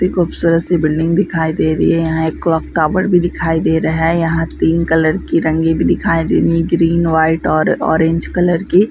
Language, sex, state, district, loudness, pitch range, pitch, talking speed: Hindi, female, Rajasthan, Nagaur, -14 LUFS, 160-170 Hz, 165 Hz, 220 wpm